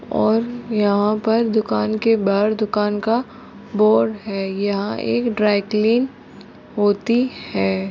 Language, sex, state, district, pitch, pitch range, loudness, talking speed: Hindi, female, Bihar, Jahanabad, 215 Hz, 205-230 Hz, -19 LUFS, 120 wpm